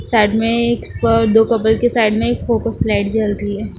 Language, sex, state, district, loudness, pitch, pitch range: Hindi, female, Bihar, West Champaran, -15 LUFS, 225 Hz, 215-230 Hz